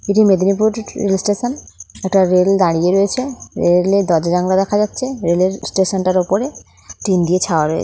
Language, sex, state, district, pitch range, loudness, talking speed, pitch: Bengali, female, West Bengal, Paschim Medinipur, 180-205 Hz, -16 LUFS, 170 wpm, 190 Hz